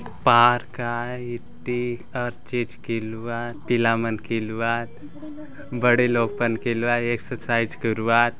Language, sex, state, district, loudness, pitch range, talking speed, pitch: Halbi, male, Chhattisgarh, Bastar, -23 LUFS, 115-120 Hz, 105 wpm, 120 Hz